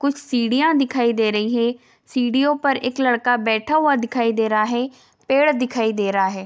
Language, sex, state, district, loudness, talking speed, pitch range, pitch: Hindi, female, Bihar, Darbhanga, -19 LUFS, 225 wpm, 225-270 Hz, 245 Hz